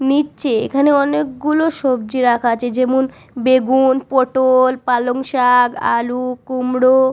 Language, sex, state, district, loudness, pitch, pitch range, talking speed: Bengali, female, West Bengal, Purulia, -16 LUFS, 255 Hz, 250-265 Hz, 110 wpm